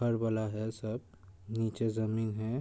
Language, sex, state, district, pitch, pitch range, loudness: Hindi, male, Uttar Pradesh, Budaun, 110 Hz, 110-115 Hz, -35 LUFS